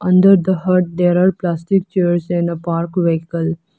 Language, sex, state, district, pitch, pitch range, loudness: English, female, Arunachal Pradesh, Lower Dibang Valley, 175 Hz, 170-185 Hz, -16 LUFS